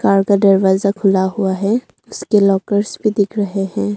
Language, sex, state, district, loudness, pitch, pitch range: Hindi, female, Arunachal Pradesh, Longding, -15 LUFS, 200 Hz, 195-205 Hz